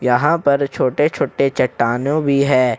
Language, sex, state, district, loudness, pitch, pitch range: Hindi, male, Jharkhand, Ranchi, -17 LUFS, 140 Hz, 125-145 Hz